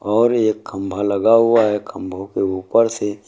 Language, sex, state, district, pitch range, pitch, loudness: Hindi, male, Uttar Pradesh, Lucknow, 95-115 Hz, 105 Hz, -17 LUFS